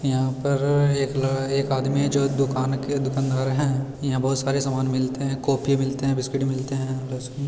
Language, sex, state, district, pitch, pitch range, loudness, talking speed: Hindi, male, Bihar, Jamui, 135 Hz, 130-140 Hz, -23 LUFS, 215 wpm